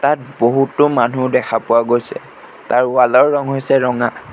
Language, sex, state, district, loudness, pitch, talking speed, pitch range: Assamese, male, Assam, Sonitpur, -15 LUFS, 125 Hz, 165 wpm, 120-135 Hz